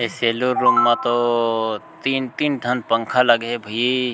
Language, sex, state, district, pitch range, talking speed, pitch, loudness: Chhattisgarhi, male, Chhattisgarh, Sukma, 115-125 Hz, 145 wpm, 120 Hz, -19 LUFS